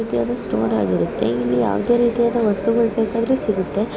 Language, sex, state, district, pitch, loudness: Kannada, female, Karnataka, Mysore, 210 Hz, -19 LUFS